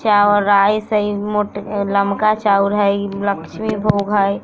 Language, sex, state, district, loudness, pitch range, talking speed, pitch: Bajjika, female, Bihar, Vaishali, -17 LUFS, 200-210 Hz, 160 wpm, 205 Hz